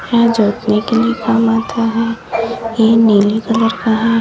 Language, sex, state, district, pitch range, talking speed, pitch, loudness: Hindi, female, Uttar Pradesh, Lalitpur, 225-230 Hz, 170 wpm, 225 Hz, -14 LUFS